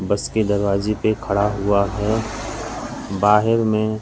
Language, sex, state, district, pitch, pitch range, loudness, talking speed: Hindi, male, Madhya Pradesh, Katni, 105 Hz, 100-110 Hz, -20 LUFS, 135 wpm